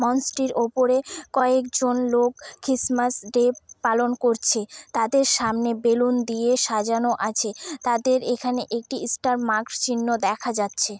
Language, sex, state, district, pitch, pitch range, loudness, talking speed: Bengali, female, West Bengal, Dakshin Dinajpur, 240 Hz, 230-255 Hz, -23 LUFS, 130 wpm